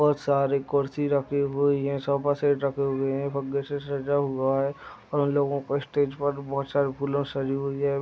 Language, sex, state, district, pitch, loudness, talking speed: Hindi, male, Uttar Pradesh, Deoria, 140 Hz, -26 LUFS, 215 wpm